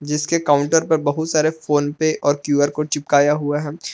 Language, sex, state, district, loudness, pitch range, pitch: Hindi, male, Jharkhand, Palamu, -18 LUFS, 145-155 Hz, 150 Hz